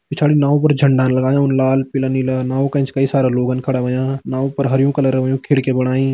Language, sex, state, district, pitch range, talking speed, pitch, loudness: Hindi, male, Uttarakhand, Tehri Garhwal, 130-140 Hz, 225 wpm, 135 Hz, -16 LUFS